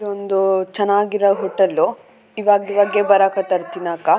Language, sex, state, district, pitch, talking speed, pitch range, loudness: Kannada, female, Karnataka, Raichur, 200 Hz, 85 wpm, 190-205 Hz, -17 LUFS